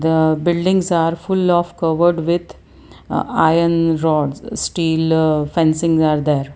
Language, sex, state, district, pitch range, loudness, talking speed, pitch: English, female, Gujarat, Valsad, 155-170 Hz, -17 LUFS, 130 wpm, 165 Hz